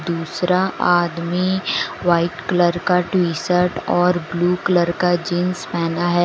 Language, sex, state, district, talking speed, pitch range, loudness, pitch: Hindi, female, Jharkhand, Deoghar, 135 wpm, 170-180 Hz, -19 LUFS, 175 Hz